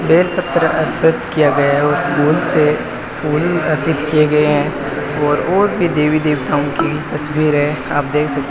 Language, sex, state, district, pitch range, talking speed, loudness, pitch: Hindi, male, Rajasthan, Bikaner, 145-160 Hz, 175 wpm, -15 LUFS, 150 Hz